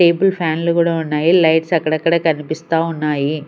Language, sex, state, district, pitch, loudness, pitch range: Telugu, female, Andhra Pradesh, Sri Satya Sai, 165 Hz, -16 LUFS, 155-170 Hz